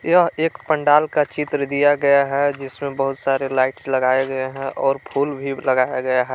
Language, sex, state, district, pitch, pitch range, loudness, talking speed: Hindi, male, Jharkhand, Palamu, 135 Hz, 135-145 Hz, -19 LUFS, 200 wpm